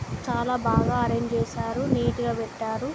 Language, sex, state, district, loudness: Telugu, female, Andhra Pradesh, Guntur, -26 LUFS